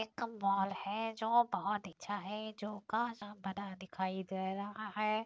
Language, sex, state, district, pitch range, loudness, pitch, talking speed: Hindi, female, Uttar Pradesh, Deoria, 195-215 Hz, -38 LUFS, 205 Hz, 170 wpm